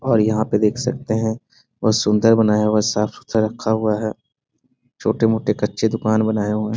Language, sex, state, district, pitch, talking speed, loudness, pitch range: Hindi, male, Bihar, Sitamarhi, 110 Hz, 195 wpm, -19 LUFS, 105-115 Hz